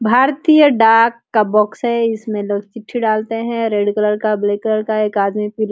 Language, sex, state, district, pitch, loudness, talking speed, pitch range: Hindi, female, Chhattisgarh, Sarguja, 220 Hz, -15 LUFS, 200 wpm, 210-230 Hz